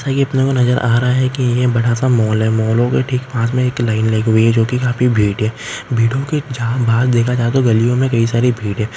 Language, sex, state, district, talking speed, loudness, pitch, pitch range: Marwari, male, Rajasthan, Nagaur, 180 wpm, -15 LUFS, 120 Hz, 115-125 Hz